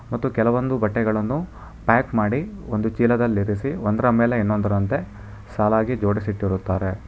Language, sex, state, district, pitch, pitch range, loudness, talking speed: Kannada, male, Karnataka, Bangalore, 110 Hz, 105-120 Hz, -22 LUFS, 100 wpm